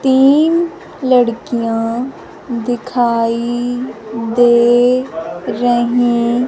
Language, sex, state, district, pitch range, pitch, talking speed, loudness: Hindi, female, Punjab, Fazilka, 230-250 Hz, 240 Hz, 45 wpm, -15 LUFS